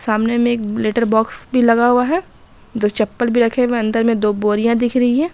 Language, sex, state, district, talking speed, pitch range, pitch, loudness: Hindi, female, Bihar, Madhepura, 250 wpm, 220-245 Hz, 235 Hz, -16 LUFS